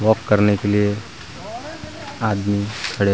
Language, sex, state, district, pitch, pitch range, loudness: Hindi, male, Bihar, Vaishali, 105 Hz, 100-110 Hz, -20 LUFS